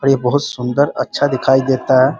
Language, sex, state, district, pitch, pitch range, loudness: Hindi, male, Bihar, Muzaffarpur, 135 Hz, 130-140 Hz, -15 LUFS